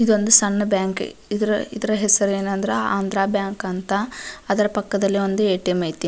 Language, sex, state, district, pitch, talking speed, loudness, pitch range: Kannada, female, Karnataka, Dharwad, 200 Hz, 160 wpm, -20 LUFS, 195-210 Hz